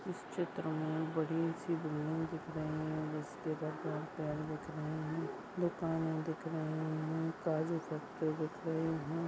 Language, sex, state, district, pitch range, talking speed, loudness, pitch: Hindi, female, Maharashtra, Sindhudurg, 155-165 Hz, 140 wpm, -39 LUFS, 160 Hz